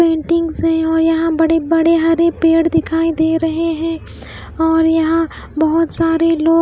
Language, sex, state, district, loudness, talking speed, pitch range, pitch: Hindi, female, Bihar, West Champaran, -15 LUFS, 155 wpm, 325-330 Hz, 325 Hz